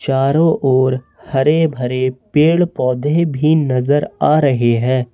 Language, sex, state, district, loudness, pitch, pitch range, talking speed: Hindi, male, Jharkhand, Ranchi, -15 LUFS, 135 Hz, 130-155 Hz, 130 wpm